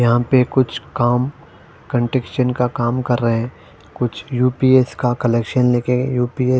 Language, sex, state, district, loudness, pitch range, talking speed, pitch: Hindi, male, Punjab, Fazilka, -18 LUFS, 120-130 Hz, 165 wpm, 125 Hz